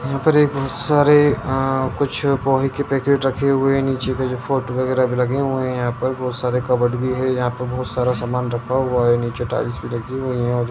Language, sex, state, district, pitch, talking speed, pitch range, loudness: Hindi, male, Bihar, Jamui, 130 Hz, 250 wpm, 125-135 Hz, -19 LUFS